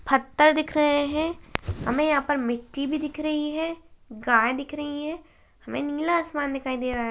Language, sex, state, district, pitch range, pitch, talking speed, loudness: Hindi, female, Uttarakhand, Tehri Garhwal, 270-305 Hz, 290 Hz, 195 wpm, -25 LUFS